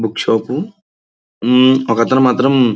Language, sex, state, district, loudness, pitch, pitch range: Telugu, male, Andhra Pradesh, Srikakulam, -14 LUFS, 125 Hz, 110-130 Hz